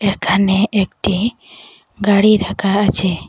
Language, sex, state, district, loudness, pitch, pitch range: Bengali, female, Assam, Hailakandi, -15 LUFS, 200 Hz, 190-210 Hz